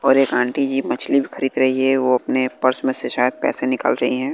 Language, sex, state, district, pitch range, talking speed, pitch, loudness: Hindi, male, Bihar, West Champaran, 130-135 Hz, 250 wpm, 130 Hz, -19 LUFS